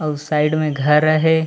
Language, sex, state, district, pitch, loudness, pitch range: Chhattisgarhi, male, Chhattisgarh, Raigarh, 155 Hz, -17 LUFS, 150-155 Hz